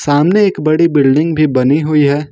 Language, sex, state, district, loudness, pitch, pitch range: Hindi, male, Jharkhand, Ranchi, -12 LUFS, 150 Hz, 145-160 Hz